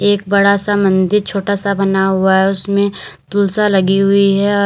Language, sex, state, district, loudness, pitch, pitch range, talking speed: Hindi, female, Uttar Pradesh, Lalitpur, -13 LUFS, 200 Hz, 195-200 Hz, 195 wpm